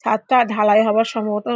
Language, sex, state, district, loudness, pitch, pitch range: Bengali, female, West Bengal, Dakshin Dinajpur, -17 LUFS, 220 Hz, 215-230 Hz